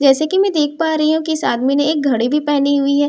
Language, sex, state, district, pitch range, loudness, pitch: Hindi, female, Bihar, Katihar, 280-315 Hz, -16 LUFS, 295 Hz